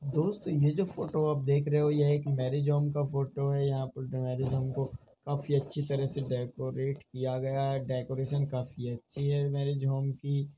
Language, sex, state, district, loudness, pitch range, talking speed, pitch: Hindi, male, Uttar Pradesh, Jalaun, -31 LUFS, 130-145 Hz, 200 wpm, 140 Hz